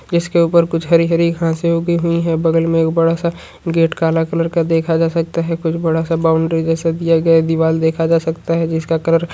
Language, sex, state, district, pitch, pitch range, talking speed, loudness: Hindi, male, Uttarakhand, Uttarkashi, 165 Hz, 165-170 Hz, 240 wpm, -16 LUFS